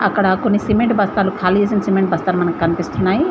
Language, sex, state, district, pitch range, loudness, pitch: Telugu, female, Telangana, Mahabubabad, 185-210 Hz, -16 LUFS, 200 Hz